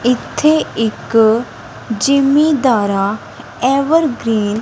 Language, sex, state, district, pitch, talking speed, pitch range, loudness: Punjabi, female, Punjab, Kapurthala, 240 Hz, 80 wpm, 220-280 Hz, -14 LUFS